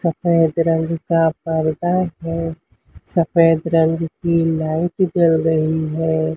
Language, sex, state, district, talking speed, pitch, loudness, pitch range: Hindi, female, Maharashtra, Mumbai Suburban, 115 wpm, 165 Hz, -18 LUFS, 160-170 Hz